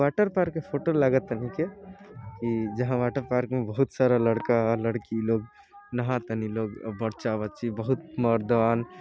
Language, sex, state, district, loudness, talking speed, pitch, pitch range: Bhojpuri, male, Uttar Pradesh, Deoria, -27 LUFS, 155 wpm, 120 Hz, 115-140 Hz